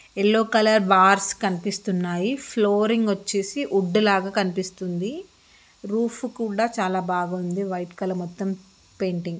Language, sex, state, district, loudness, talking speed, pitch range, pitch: Telugu, female, Telangana, Karimnagar, -23 LUFS, 115 wpm, 185-220 Hz, 195 Hz